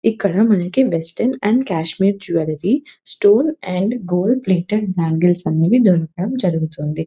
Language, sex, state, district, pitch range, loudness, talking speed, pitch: Telugu, female, Telangana, Nalgonda, 165-230 Hz, -17 LUFS, 125 wpm, 190 Hz